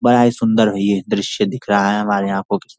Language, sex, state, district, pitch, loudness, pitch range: Hindi, male, Bihar, Saharsa, 100 Hz, -17 LUFS, 100-115 Hz